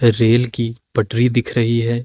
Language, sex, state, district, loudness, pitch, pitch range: Hindi, male, Uttar Pradesh, Lucknow, -17 LUFS, 115 Hz, 115-120 Hz